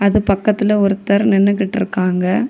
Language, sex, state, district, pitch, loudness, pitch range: Tamil, female, Tamil Nadu, Kanyakumari, 200 Hz, -15 LUFS, 195-210 Hz